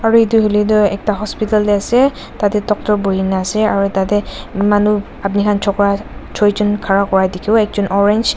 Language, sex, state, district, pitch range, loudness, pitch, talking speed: Nagamese, female, Nagaland, Dimapur, 200-215 Hz, -15 LUFS, 205 Hz, 180 wpm